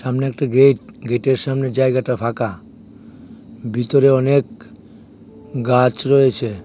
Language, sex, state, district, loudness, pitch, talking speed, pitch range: Bengali, male, Tripura, West Tripura, -17 LUFS, 130 Hz, 100 wpm, 125-140 Hz